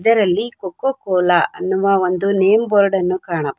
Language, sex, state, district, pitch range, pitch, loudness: Kannada, female, Karnataka, Bangalore, 185-205 Hz, 195 Hz, -17 LUFS